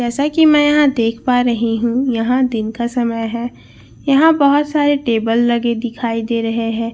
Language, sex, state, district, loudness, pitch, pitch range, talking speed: Hindi, female, Bihar, Katihar, -15 LUFS, 240 Hz, 230-275 Hz, 180 wpm